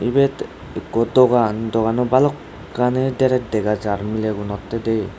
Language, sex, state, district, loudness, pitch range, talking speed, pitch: Chakma, male, Tripura, West Tripura, -19 LUFS, 110-125 Hz, 105 wpm, 115 Hz